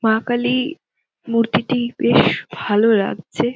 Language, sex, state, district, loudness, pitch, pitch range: Bengali, female, West Bengal, Dakshin Dinajpur, -18 LUFS, 235 Hz, 220-250 Hz